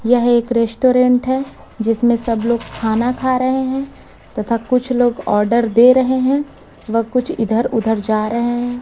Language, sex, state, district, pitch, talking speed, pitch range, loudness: Hindi, female, Chhattisgarh, Raipur, 240 Hz, 170 wpm, 230-255 Hz, -16 LUFS